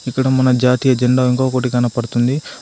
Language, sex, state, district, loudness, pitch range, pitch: Telugu, male, Telangana, Adilabad, -15 LUFS, 125-130 Hz, 125 Hz